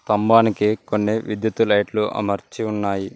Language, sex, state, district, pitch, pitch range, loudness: Telugu, male, Telangana, Mahabubabad, 105 Hz, 105-110 Hz, -20 LUFS